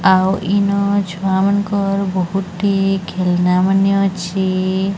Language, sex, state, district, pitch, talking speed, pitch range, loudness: Odia, male, Odisha, Sambalpur, 195 Hz, 70 wpm, 185-195 Hz, -16 LUFS